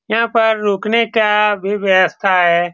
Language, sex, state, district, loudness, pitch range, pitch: Hindi, male, Bihar, Saran, -14 LUFS, 190-220 Hz, 205 Hz